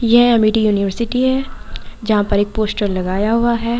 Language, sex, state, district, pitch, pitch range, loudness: Hindi, female, Bihar, Saran, 220 Hz, 205-235 Hz, -16 LUFS